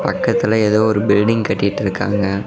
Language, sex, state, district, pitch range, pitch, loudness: Tamil, male, Tamil Nadu, Namakkal, 100-110 Hz, 105 Hz, -16 LUFS